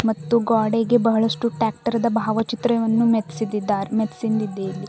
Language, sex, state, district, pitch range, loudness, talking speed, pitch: Kannada, female, Karnataka, Bidar, 215-230 Hz, -21 LUFS, 100 wpm, 225 Hz